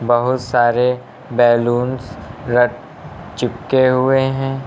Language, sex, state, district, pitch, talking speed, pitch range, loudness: Hindi, male, Uttar Pradesh, Lucknow, 125 Hz, 90 wpm, 120-130 Hz, -16 LUFS